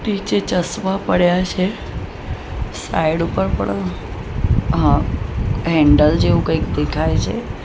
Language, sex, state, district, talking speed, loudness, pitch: Gujarati, female, Gujarat, Gandhinagar, 95 wpm, -18 LUFS, 165 Hz